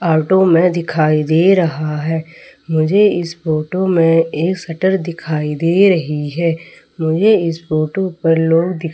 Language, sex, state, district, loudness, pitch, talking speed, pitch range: Hindi, female, Madhya Pradesh, Umaria, -15 LUFS, 165 Hz, 155 wpm, 160-180 Hz